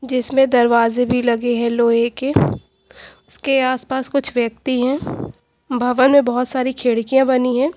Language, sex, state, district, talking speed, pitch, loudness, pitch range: Hindi, female, Delhi, New Delhi, 145 wpm, 250 Hz, -17 LUFS, 240-265 Hz